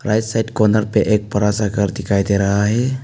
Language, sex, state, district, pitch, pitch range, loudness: Hindi, male, Arunachal Pradesh, Papum Pare, 105 Hz, 100-110 Hz, -17 LUFS